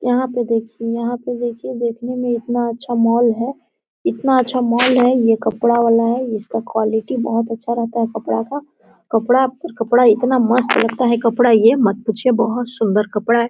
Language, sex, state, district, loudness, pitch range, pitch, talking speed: Hindi, female, Jharkhand, Sahebganj, -17 LUFS, 230-245 Hz, 235 Hz, 185 wpm